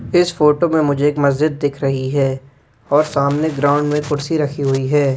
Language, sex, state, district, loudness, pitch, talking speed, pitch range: Hindi, male, Madhya Pradesh, Bhopal, -17 LUFS, 145 Hz, 195 wpm, 140-150 Hz